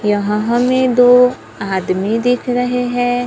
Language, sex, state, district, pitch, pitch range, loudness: Hindi, female, Maharashtra, Gondia, 245 Hz, 210-245 Hz, -14 LUFS